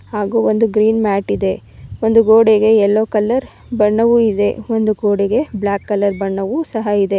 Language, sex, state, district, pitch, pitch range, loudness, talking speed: Kannada, female, Karnataka, Bangalore, 215 Hz, 205-225 Hz, -15 LUFS, 150 wpm